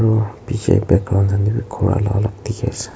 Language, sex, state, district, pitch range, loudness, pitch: Nagamese, male, Nagaland, Kohima, 100-110 Hz, -18 LUFS, 105 Hz